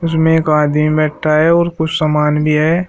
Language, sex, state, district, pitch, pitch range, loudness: Hindi, male, Uttar Pradesh, Shamli, 155 Hz, 150-160 Hz, -13 LUFS